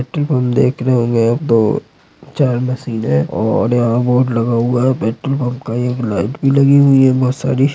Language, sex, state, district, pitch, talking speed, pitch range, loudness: Hindi, male, Bihar, Supaul, 125 Hz, 200 wpm, 120-135 Hz, -15 LUFS